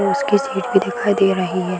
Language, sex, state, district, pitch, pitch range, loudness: Hindi, female, Bihar, Gaya, 195 Hz, 185-205 Hz, -18 LUFS